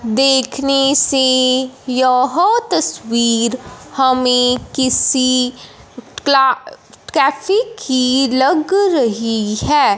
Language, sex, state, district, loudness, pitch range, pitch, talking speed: Hindi, male, Punjab, Fazilka, -14 LUFS, 250-285 Hz, 260 Hz, 70 wpm